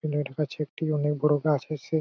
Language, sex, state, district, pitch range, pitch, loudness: Bengali, male, West Bengal, Purulia, 150-155 Hz, 150 Hz, -27 LUFS